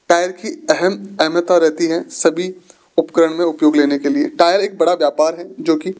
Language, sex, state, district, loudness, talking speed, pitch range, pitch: Hindi, male, Rajasthan, Jaipur, -16 LUFS, 210 wpm, 160-180 Hz, 170 Hz